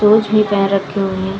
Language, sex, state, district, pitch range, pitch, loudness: Hindi, female, Chhattisgarh, Balrampur, 195-210 Hz, 195 Hz, -15 LUFS